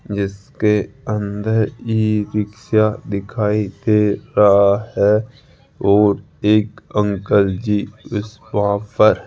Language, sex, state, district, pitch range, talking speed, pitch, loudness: Hindi, male, Rajasthan, Jaipur, 100-110 Hz, 105 wpm, 105 Hz, -18 LUFS